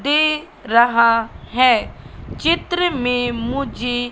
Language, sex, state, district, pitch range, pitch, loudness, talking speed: Hindi, female, Madhya Pradesh, Katni, 240-305 Hz, 250 Hz, -18 LUFS, 85 wpm